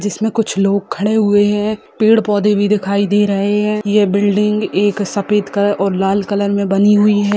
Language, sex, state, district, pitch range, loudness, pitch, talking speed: Hindi, female, Bihar, Sitamarhi, 200-210 Hz, -14 LUFS, 205 Hz, 205 wpm